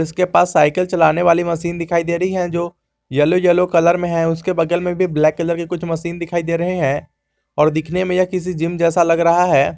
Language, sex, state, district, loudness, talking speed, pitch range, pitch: Hindi, male, Jharkhand, Garhwa, -17 LUFS, 240 wpm, 165-180 Hz, 170 Hz